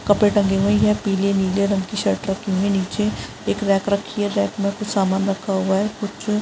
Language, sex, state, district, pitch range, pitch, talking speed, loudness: Hindi, female, Rajasthan, Churu, 195-210 Hz, 200 Hz, 245 wpm, -20 LUFS